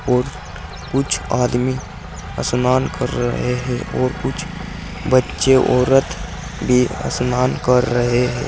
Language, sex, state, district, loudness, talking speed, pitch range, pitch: Hindi, male, Uttar Pradesh, Saharanpur, -18 LUFS, 115 wpm, 95-130 Hz, 125 Hz